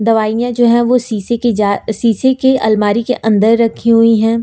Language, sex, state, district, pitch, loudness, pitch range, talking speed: Hindi, female, Uttar Pradesh, Lucknow, 230 Hz, -12 LUFS, 220-240 Hz, 205 wpm